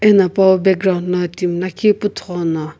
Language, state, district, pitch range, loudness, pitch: Sumi, Nagaland, Kohima, 175-195 Hz, -16 LUFS, 185 Hz